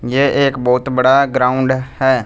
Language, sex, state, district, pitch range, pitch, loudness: Hindi, male, Punjab, Fazilka, 125-130 Hz, 130 Hz, -14 LUFS